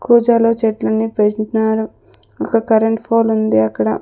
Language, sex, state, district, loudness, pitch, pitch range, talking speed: Telugu, female, Andhra Pradesh, Sri Satya Sai, -15 LUFS, 220 Hz, 215-230 Hz, 105 wpm